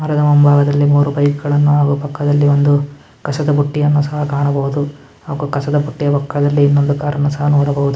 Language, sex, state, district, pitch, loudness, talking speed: Kannada, male, Karnataka, Mysore, 145 Hz, -14 LUFS, 150 wpm